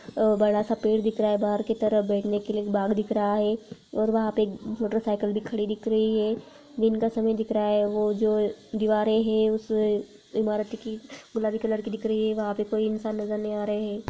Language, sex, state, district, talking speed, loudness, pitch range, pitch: Hindi, female, Rajasthan, Nagaur, 240 wpm, -26 LUFS, 210-220 Hz, 215 Hz